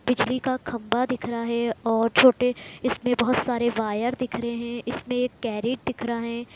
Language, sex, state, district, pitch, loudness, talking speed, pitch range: Hindi, female, Bihar, Muzaffarpur, 240 Hz, -25 LUFS, 190 wpm, 235-250 Hz